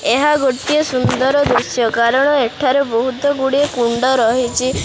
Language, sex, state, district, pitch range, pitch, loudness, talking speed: Odia, male, Odisha, Khordha, 240-285 Hz, 260 Hz, -15 LUFS, 125 wpm